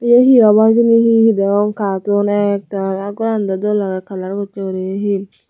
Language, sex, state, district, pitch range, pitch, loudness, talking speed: Chakma, female, Tripura, Unakoti, 195-220 Hz, 205 Hz, -15 LUFS, 195 wpm